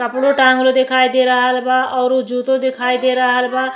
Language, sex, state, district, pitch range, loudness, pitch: Bhojpuri, female, Uttar Pradesh, Deoria, 250-260 Hz, -14 LUFS, 255 Hz